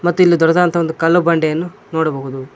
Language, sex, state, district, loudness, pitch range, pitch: Kannada, male, Karnataka, Koppal, -15 LUFS, 160-175 Hz, 165 Hz